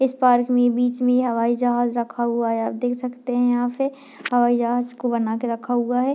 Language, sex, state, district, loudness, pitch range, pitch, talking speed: Hindi, female, Bihar, Darbhanga, -21 LUFS, 240-250 Hz, 245 Hz, 235 wpm